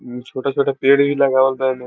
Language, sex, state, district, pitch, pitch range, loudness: Bhojpuri, male, Bihar, Saran, 135 Hz, 130-140 Hz, -16 LUFS